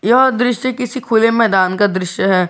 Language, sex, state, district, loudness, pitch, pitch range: Hindi, male, Jharkhand, Garhwa, -14 LUFS, 230 Hz, 190-245 Hz